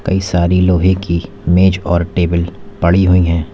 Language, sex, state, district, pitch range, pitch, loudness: Hindi, male, Uttar Pradesh, Lalitpur, 85-95 Hz, 90 Hz, -14 LUFS